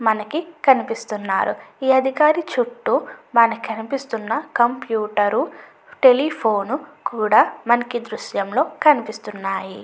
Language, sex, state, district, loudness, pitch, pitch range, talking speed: Telugu, female, Andhra Pradesh, Chittoor, -20 LUFS, 235 Hz, 220-270 Hz, 85 wpm